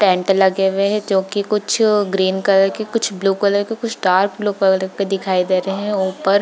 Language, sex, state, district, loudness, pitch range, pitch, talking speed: Hindi, female, Bihar, Purnia, -17 LUFS, 190-205 Hz, 195 Hz, 235 wpm